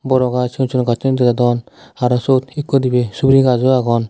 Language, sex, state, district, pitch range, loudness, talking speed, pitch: Chakma, male, Tripura, Dhalai, 120-130 Hz, -15 LUFS, 205 wpm, 125 Hz